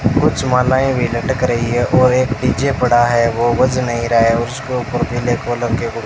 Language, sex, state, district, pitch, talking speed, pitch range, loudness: Hindi, male, Rajasthan, Bikaner, 120 Hz, 240 wpm, 120-130 Hz, -15 LUFS